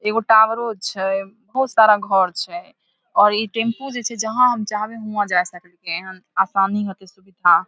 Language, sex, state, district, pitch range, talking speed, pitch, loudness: Maithili, female, Bihar, Samastipur, 190-230 Hz, 165 wpm, 210 Hz, -19 LUFS